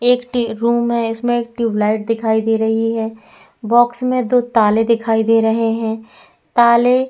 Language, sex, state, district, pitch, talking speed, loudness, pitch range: Hindi, female, Uttar Pradesh, Etah, 230 Hz, 180 wpm, -16 LUFS, 225-240 Hz